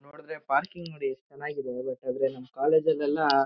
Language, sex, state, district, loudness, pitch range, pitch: Kannada, male, Karnataka, Shimoga, -29 LUFS, 135-155 Hz, 140 Hz